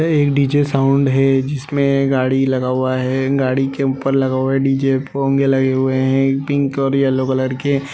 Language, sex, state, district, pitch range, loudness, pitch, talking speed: Hindi, male, Uttar Pradesh, Gorakhpur, 130-140 Hz, -16 LUFS, 135 Hz, 195 wpm